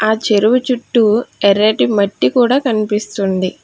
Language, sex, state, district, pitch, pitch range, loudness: Telugu, female, Telangana, Hyderabad, 215 Hz, 205-240 Hz, -14 LUFS